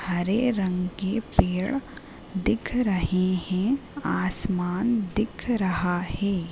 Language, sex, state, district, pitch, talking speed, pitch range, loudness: Hindi, female, Uttar Pradesh, Gorakhpur, 195 Hz, 100 wpm, 185-230 Hz, -26 LUFS